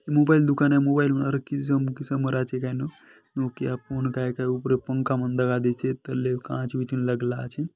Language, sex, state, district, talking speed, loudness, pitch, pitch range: Halbi, male, Chhattisgarh, Bastar, 30 wpm, -25 LUFS, 130 Hz, 125-140 Hz